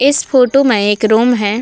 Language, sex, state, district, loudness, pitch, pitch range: Hindi, female, Uttar Pradesh, Budaun, -12 LUFS, 245 Hz, 215-270 Hz